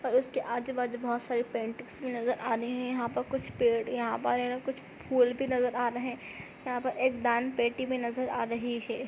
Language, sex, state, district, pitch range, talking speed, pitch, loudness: Hindi, female, Uttar Pradesh, Budaun, 235-255 Hz, 230 wpm, 245 Hz, -31 LUFS